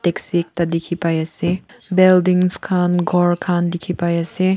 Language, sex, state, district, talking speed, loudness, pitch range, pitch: Nagamese, female, Nagaland, Kohima, 160 wpm, -18 LUFS, 170-180 Hz, 175 Hz